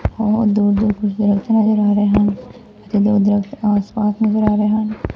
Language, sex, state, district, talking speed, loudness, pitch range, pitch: Punjabi, female, Punjab, Fazilka, 200 wpm, -16 LUFS, 205-215 Hz, 210 Hz